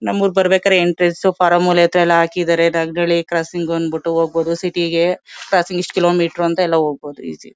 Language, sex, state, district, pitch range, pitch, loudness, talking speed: Kannada, female, Karnataka, Mysore, 165-180 Hz, 170 Hz, -16 LUFS, 175 wpm